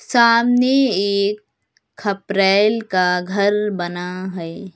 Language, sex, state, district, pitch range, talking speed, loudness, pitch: Hindi, female, Uttar Pradesh, Lucknow, 185-215 Hz, 90 wpm, -18 LUFS, 200 Hz